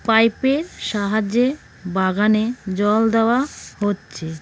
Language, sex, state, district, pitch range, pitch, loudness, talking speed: Bengali, female, West Bengal, Cooch Behar, 200-235 Hz, 215 Hz, -20 LUFS, 95 wpm